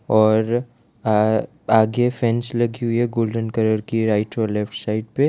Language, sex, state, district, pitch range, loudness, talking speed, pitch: Hindi, male, Gujarat, Valsad, 110-120 Hz, -20 LUFS, 180 wpm, 115 Hz